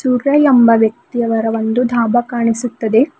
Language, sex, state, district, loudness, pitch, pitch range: Kannada, female, Karnataka, Bidar, -14 LUFS, 235 Hz, 230-250 Hz